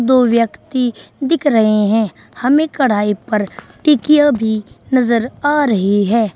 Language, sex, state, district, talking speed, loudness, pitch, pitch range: Hindi, female, Uttar Pradesh, Shamli, 140 wpm, -15 LUFS, 235 Hz, 215-280 Hz